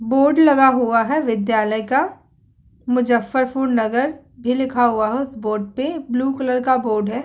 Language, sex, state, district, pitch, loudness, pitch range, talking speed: Hindi, female, Uttar Pradesh, Muzaffarnagar, 250 Hz, -18 LUFS, 230-265 Hz, 165 wpm